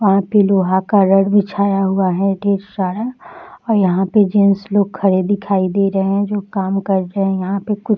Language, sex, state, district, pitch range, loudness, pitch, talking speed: Hindi, female, Bihar, Jahanabad, 195-205 Hz, -16 LUFS, 195 Hz, 220 wpm